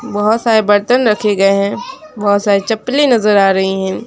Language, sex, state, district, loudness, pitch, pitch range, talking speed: Hindi, female, West Bengal, Alipurduar, -13 LUFS, 210 Hz, 200-225 Hz, 190 wpm